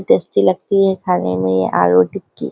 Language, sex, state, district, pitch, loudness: Hindi, female, Maharashtra, Nagpur, 95 Hz, -15 LUFS